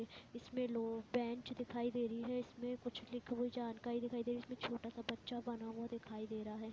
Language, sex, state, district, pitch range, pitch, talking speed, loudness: Hindi, female, Chhattisgarh, Raigarh, 230-245 Hz, 240 Hz, 215 wpm, -44 LUFS